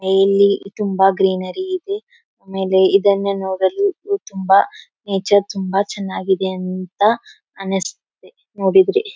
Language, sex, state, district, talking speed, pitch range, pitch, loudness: Kannada, female, Karnataka, Belgaum, 100 wpm, 190-225 Hz, 195 Hz, -18 LUFS